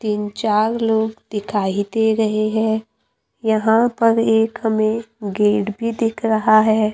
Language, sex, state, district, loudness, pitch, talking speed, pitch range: Hindi, female, Maharashtra, Gondia, -18 LUFS, 220 Hz, 140 wpm, 215-225 Hz